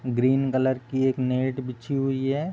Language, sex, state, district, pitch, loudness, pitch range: Hindi, male, Uttar Pradesh, Deoria, 130 Hz, -25 LUFS, 130-135 Hz